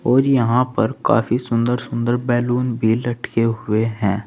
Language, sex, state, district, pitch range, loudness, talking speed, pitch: Hindi, male, Uttar Pradesh, Saharanpur, 115-125 Hz, -19 LUFS, 155 wpm, 120 Hz